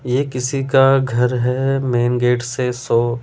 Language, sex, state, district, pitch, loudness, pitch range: Hindi, male, Delhi, New Delhi, 125 Hz, -17 LUFS, 120-135 Hz